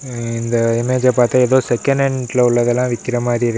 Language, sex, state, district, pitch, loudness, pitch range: Tamil, male, Tamil Nadu, Namakkal, 120 Hz, -16 LUFS, 120-130 Hz